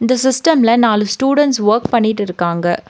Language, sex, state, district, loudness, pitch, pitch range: Tamil, female, Tamil Nadu, Nilgiris, -14 LUFS, 230 Hz, 210-260 Hz